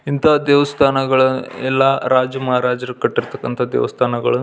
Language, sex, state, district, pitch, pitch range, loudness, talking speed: Kannada, male, Karnataka, Belgaum, 135 Hz, 130-140 Hz, -16 LUFS, 95 wpm